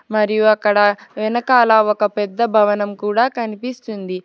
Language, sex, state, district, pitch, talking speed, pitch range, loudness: Telugu, female, Telangana, Hyderabad, 215 Hz, 115 wpm, 205-230 Hz, -16 LUFS